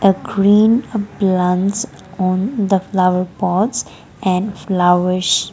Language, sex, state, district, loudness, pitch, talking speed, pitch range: English, female, Nagaland, Kohima, -16 LUFS, 190 Hz, 110 wpm, 185-205 Hz